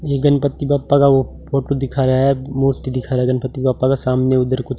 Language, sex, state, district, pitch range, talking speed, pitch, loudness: Hindi, male, Rajasthan, Bikaner, 130-140 Hz, 240 wpm, 135 Hz, -17 LUFS